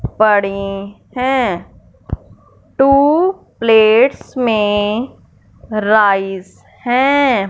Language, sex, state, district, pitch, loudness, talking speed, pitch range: Hindi, female, Punjab, Fazilka, 220 Hz, -14 LUFS, 55 wpm, 205-260 Hz